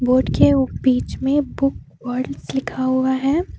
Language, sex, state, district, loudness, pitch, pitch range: Hindi, female, Jharkhand, Deoghar, -19 LUFS, 260 Hz, 255-275 Hz